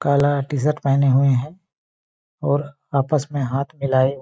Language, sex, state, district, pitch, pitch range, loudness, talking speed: Hindi, male, Chhattisgarh, Balrampur, 140 Hz, 130-145 Hz, -20 LUFS, 140 wpm